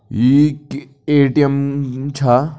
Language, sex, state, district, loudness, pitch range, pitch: Kumaoni, male, Uttarakhand, Tehri Garhwal, -15 LUFS, 130-145 Hz, 140 Hz